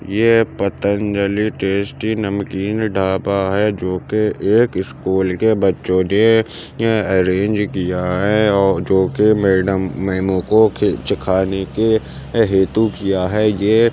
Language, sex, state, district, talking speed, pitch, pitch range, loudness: Hindi, male, Uttar Pradesh, Jyotiba Phule Nagar, 130 wpm, 100 Hz, 95-110 Hz, -17 LUFS